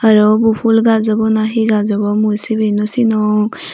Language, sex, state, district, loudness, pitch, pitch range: Chakma, female, Tripura, Unakoti, -13 LUFS, 215 Hz, 210-225 Hz